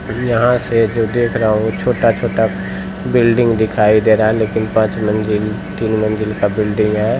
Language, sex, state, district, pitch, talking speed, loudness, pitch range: Hindi, male, Bihar, Samastipur, 110 Hz, 185 wpm, -15 LUFS, 105-115 Hz